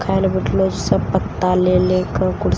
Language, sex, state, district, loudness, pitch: Maithili, female, Bihar, Katihar, -18 LUFS, 180 Hz